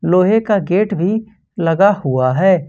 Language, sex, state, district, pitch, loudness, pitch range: Hindi, male, Jharkhand, Ranchi, 190 Hz, -15 LUFS, 170-205 Hz